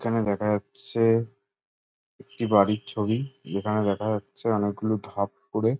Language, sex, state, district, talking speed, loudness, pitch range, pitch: Bengali, male, West Bengal, Jalpaiguri, 145 wpm, -26 LUFS, 100-115 Hz, 110 Hz